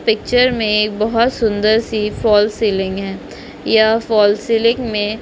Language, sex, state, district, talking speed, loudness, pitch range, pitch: Hindi, female, West Bengal, Purulia, 150 wpm, -15 LUFS, 210-230 Hz, 220 Hz